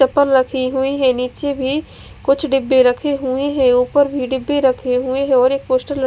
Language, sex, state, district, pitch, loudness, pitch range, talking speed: Hindi, female, Odisha, Khordha, 265 Hz, -16 LUFS, 255-280 Hz, 210 wpm